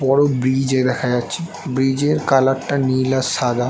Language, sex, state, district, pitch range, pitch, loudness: Bengali, male, West Bengal, North 24 Parganas, 130-140 Hz, 135 Hz, -18 LUFS